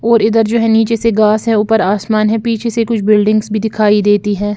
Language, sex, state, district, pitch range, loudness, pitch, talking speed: Hindi, female, Bihar, Patna, 210-225 Hz, -12 LUFS, 220 Hz, 250 wpm